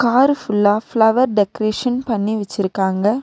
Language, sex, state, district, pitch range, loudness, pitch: Tamil, female, Tamil Nadu, Nilgiris, 205-240 Hz, -17 LUFS, 215 Hz